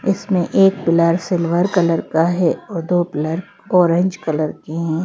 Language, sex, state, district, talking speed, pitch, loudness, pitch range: Hindi, female, Madhya Pradesh, Bhopal, 165 wpm, 170 Hz, -17 LUFS, 165-185 Hz